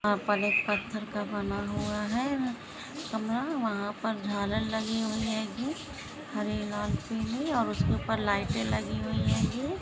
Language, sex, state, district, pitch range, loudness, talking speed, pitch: Hindi, female, Maharashtra, Dhule, 210-230 Hz, -31 LUFS, 160 wpm, 220 Hz